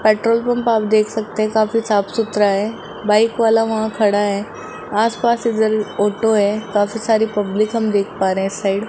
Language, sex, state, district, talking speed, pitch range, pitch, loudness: Hindi, male, Rajasthan, Jaipur, 200 wpm, 205-225 Hz, 215 Hz, -17 LUFS